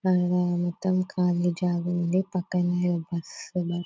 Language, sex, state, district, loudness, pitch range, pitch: Telugu, female, Telangana, Nalgonda, -26 LUFS, 175-180 Hz, 180 Hz